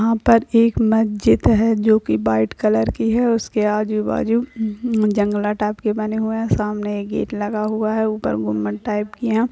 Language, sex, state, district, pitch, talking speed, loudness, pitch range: Hindi, female, Bihar, Bhagalpur, 215 Hz, 190 wpm, -19 LUFS, 210-225 Hz